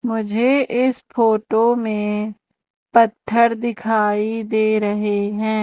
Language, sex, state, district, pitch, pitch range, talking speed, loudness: Hindi, female, Madhya Pradesh, Umaria, 220 Hz, 210-235 Hz, 95 wpm, -18 LUFS